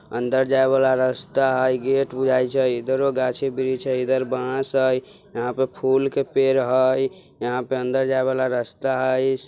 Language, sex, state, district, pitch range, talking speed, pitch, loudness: Bajjika, male, Bihar, Vaishali, 130-135 Hz, 160 wpm, 130 Hz, -21 LUFS